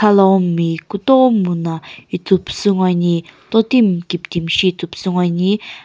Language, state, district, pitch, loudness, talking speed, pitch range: Sumi, Nagaland, Kohima, 180 Hz, -16 LUFS, 105 wpm, 170-205 Hz